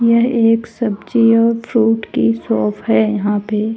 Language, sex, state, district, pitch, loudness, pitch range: Hindi, female, Haryana, Charkhi Dadri, 225 Hz, -15 LUFS, 195-230 Hz